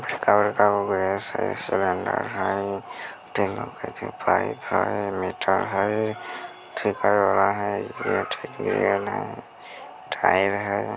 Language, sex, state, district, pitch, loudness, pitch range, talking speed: Bajjika, male, Bihar, Vaishali, 100 Hz, -24 LUFS, 100-105 Hz, 115 wpm